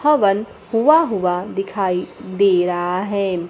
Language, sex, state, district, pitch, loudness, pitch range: Hindi, female, Bihar, Kaimur, 195 Hz, -18 LUFS, 180-210 Hz